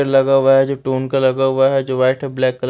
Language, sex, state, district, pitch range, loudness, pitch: Hindi, male, Punjab, Fazilka, 130-135 Hz, -15 LUFS, 135 Hz